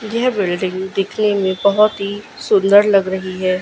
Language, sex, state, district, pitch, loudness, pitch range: Hindi, female, Gujarat, Gandhinagar, 200 Hz, -16 LUFS, 190-210 Hz